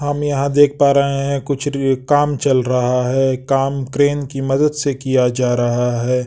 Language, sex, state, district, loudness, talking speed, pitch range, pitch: Hindi, male, Bihar, West Champaran, -16 LUFS, 200 wpm, 130-145 Hz, 135 Hz